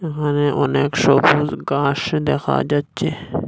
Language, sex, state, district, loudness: Bengali, male, Assam, Hailakandi, -18 LUFS